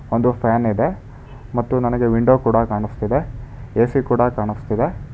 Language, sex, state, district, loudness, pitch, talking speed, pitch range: Kannada, male, Karnataka, Bangalore, -19 LUFS, 120 Hz, 115 wpm, 115-125 Hz